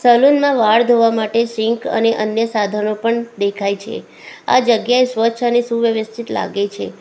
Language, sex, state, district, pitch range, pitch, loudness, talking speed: Gujarati, female, Gujarat, Valsad, 215-235 Hz, 230 Hz, -16 LUFS, 165 wpm